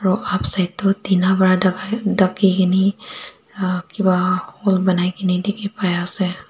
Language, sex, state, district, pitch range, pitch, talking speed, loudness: Nagamese, female, Nagaland, Dimapur, 185-200 Hz, 185 Hz, 90 wpm, -18 LUFS